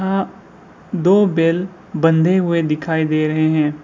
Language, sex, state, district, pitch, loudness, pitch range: Hindi, male, Assam, Sonitpur, 165 Hz, -17 LUFS, 155-185 Hz